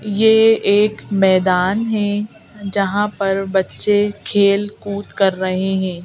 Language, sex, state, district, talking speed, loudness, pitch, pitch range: Hindi, female, Madhya Pradesh, Bhopal, 110 wpm, -16 LUFS, 200 Hz, 195-210 Hz